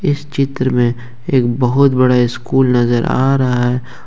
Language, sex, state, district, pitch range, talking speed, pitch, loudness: Hindi, male, Jharkhand, Ranchi, 120-135 Hz, 165 wpm, 130 Hz, -14 LUFS